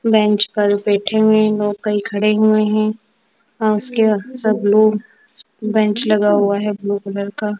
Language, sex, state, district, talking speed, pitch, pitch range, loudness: Hindi, female, Punjab, Kapurthala, 160 wpm, 215 Hz, 205-215 Hz, -16 LUFS